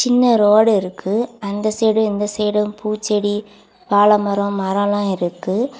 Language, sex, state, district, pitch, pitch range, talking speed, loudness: Tamil, female, Tamil Nadu, Kanyakumari, 210 Hz, 200-220 Hz, 135 wpm, -17 LUFS